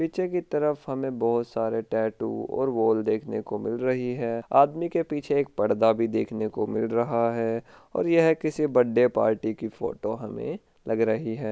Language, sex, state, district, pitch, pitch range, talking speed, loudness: Hindi, male, Rajasthan, Churu, 115 Hz, 110-140 Hz, 185 wpm, -26 LUFS